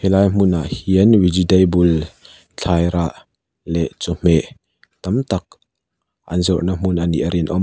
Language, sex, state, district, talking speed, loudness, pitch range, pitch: Mizo, male, Mizoram, Aizawl, 135 wpm, -17 LUFS, 85-95 Hz, 90 Hz